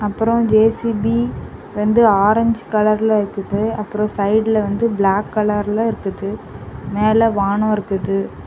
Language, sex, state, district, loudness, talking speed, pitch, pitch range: Tamil, female, Tamil Nadu, Kanyakumari, -17 LUFS, 105 wpm, 210 Hz, 200-220 Hz